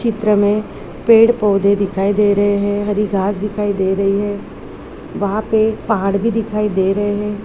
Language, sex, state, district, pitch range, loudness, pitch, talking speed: Hindi, female, Maharashtra, Nagpur, 200-210 Hz, -16 LUFS, 205 Hz, 175 wpm